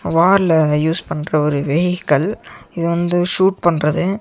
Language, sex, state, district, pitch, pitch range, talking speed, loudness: Tamil, male, Tamil Nadu, Nilgiris, 170 Hz, 150-180 Hz, 130 wpm, -16 LUFS